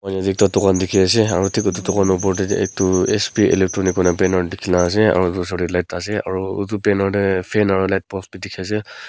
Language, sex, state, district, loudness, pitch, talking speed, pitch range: Nagamese, male, Nagaland, Kohima, -18 LUFS, 95 Hz, 230 wpm, 95-100 Hz